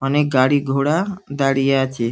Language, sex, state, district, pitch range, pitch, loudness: Bengali, male, West Bengal, Dakshin Dinajpur, 135-145 Hz, 135 Hz, -18 LUFS